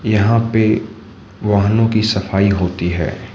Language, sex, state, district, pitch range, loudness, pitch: Hindi, male, Manipur, Imphal West, 95-110 Hz, -16 LUFS, 105 Hz